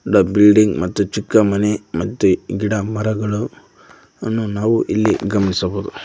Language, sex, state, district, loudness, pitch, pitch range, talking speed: Kannada, male, Karnataka, Koppal, -17 LUFS, 105 Hz, 100-110 Hz, 90 wpm